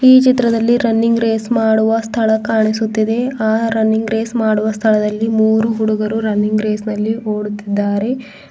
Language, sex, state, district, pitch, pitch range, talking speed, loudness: Kannada, female, Karnataka, Bidar, 220 Hz, 215-225 Hz, 125 wpm, -15 LUFS